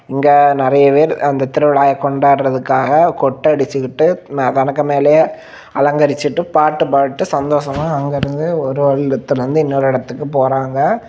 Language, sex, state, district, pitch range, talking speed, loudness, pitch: Tamil, male, Tamil Nadu, Kanyakumari, 135-150 Hz, 105 wpm, -14 LUFS, 140 Hz